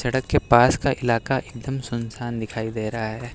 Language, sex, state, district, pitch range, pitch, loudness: Hindi, male, Uttar Pradesh, Lucknow, 115-130 Hz, 120 Hz, -23 LUFS